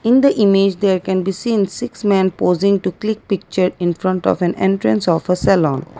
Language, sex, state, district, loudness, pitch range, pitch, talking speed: English, female, Assam, Kamrup Metropolitan, -16 LUFS, 180-200 Hz, 190 Hz, 200 wpm